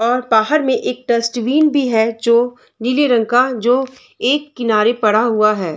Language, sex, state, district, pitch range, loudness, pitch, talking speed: Hindi, female, Bihar, Samastipur, 225-255 Hz, -15 LUFS, 240 Hz, 165 wpm